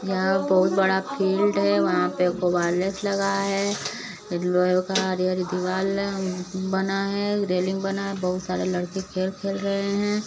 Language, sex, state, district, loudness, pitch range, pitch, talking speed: Bhojpuri, female, Uttar Pradesh, Varanasi, -24 LUFS, 185-195 Hz, 190 Hz, 165 wpm